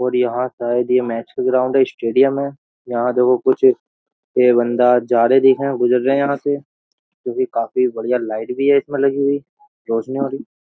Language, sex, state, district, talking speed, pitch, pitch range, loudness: Hindi, male, Uttar Pradesh, Jyotiba Phule Nagar, 190 wpm, 125 Hz, 125-135 Hz, -17 LUFS